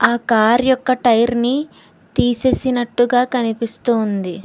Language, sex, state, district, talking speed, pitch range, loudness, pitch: Telugu, female, Telangana, Hyderabad, 110 wpm, 230-250 Hz, -16 LUFS, 240 Hz